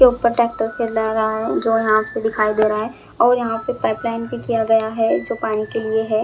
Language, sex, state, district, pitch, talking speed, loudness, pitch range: Hindi, male, Punjab, Fazilka, 225 Hz, 200 wpm, -19 LUFS, 220-230 Hz